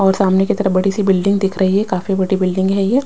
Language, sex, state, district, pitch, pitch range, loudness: Hindi, female, Chhattisgarh, Raipur, 195 Hz, 190-200 Hz, -16 LUFS